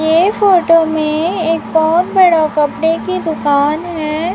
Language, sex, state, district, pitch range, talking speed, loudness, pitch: Hindi, female, Chhattisgarh, Raipur, 310-345 Hz, 140 wpm, -13 LUFS, 325 Hz